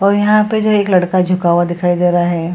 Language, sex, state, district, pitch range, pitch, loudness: Hindi, female, Bihar, Purnia, 175-205 Hz, 185 Hz, -13 LUFS